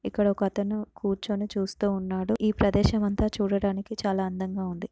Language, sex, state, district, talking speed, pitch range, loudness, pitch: Telugu, female, Telangana, Karimnagar, 145 wpm, 195-210 Hz, -27 LUFS, 200 Hz